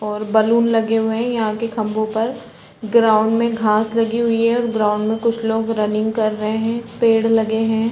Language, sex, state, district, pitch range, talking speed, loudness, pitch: Hindi, female, Chhattisgarh, Raigarh, 220-230 Hz, 210 wpm, -18 LUFS, 225 Hz